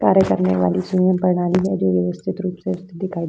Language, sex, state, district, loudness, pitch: Hindi, female, Bihar, Vaishali, -19 LUFS, 180 Hz